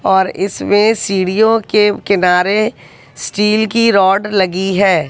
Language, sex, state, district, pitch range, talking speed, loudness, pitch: Hindi, female, Haryana, Jhajjar, 185-210 Hz, 120 wpm, -13 LUFS, 195 Hz